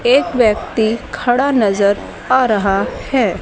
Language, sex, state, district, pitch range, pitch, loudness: Hindi, female, Haryana, Charkhi Dadri, 205-255 Hz, 225 Hz, -15 LUFS